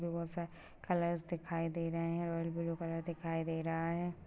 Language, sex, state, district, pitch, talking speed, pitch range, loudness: Hindi, female, Goa, North and South Goa, 170 Hz, 170 wpm, 165-170 Hz, -39 LUFS